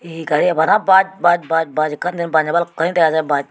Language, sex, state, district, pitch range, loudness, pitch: Chakma, female, Tripura, Unakoti, 155-175 Hz, -16 LUFS, 165 Hz